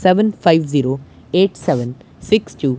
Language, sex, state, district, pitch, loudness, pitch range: Hindi, male, Punjab, Pathankot, 165 Hz, -17 LUFS, 135-185 Hz